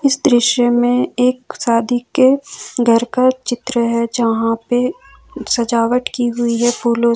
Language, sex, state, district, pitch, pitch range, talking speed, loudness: Hindi, female, Jharkhand, Ranchi, 240 Hz, 235-250 Hz, 150 wpm, -16 LUFS